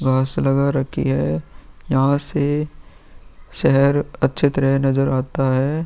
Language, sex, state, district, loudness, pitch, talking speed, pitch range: Hindi, male, Bihar, Vaishali, -19 LUFS, 135 Hz, 125 wpm, 130-145 Hz